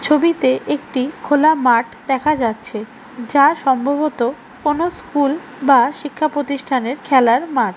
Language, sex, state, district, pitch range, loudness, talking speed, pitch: Bengali, female, West Bengal, Alipurduar, 250-295 Hz, -17 LUFS, 115 wpm, 275 Hz